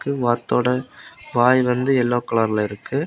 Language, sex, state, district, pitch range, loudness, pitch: Tamil, male, Tamil Nadu, Kanyakumari, 120-130 Hz, -20 LUFS, 125 Hz